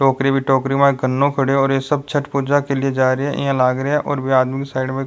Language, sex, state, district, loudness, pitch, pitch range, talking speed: Rajasthani, male, Rajasthan, Nagaur, -18 LUFS, 135 Hz, 135-140 Hz, 320 wpm